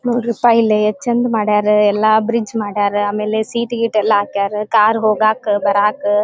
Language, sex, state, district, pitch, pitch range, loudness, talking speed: Kannada, female, Karnataka, Dharwad, 215 Hz, 210-230 Hz, -15 LUFS, 165 wpm